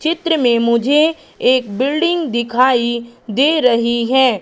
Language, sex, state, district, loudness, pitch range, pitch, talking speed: Hindi, female, Madhya Pradesh, Katni, -15 LUFS, 235-300 Hz, 250 Hz, 120 wpm